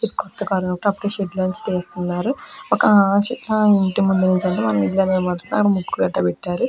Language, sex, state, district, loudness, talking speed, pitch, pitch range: Telugu, female, Andhra Pradesh, Krishna, -19 LUFS, 195 wpm, 190 Hz, 180-205 Hz